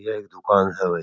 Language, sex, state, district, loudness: Marwari, male, Rajasthan, Churu, -21 LUFS